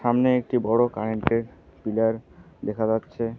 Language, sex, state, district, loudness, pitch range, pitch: Bengali, female, West Bengal, Alipurduar, -24 LUFS, 110-120 Hz, 115 Hz